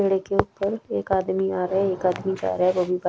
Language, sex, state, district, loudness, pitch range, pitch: Hindi, female, Chhattisgarh, Raipur, -24 LUFS, 185-195 Hz, 190 Hz